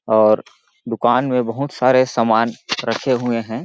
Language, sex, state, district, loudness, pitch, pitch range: Hindi, male, Chhattisgarh, Balrampur, -18 LUFS, 120 Hz, 115-125 Hz